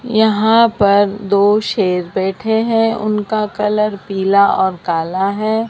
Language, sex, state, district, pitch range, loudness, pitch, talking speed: Hindi, female, Maharashtra, Mumbai Suburban, 195-220 Hz, -15 LUFS, 210 Hz, 125 wpm